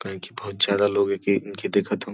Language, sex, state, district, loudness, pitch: Bhojpuri, male, Uttar Pradesh, Gorakhpur, -22 LUFS, 100 Hz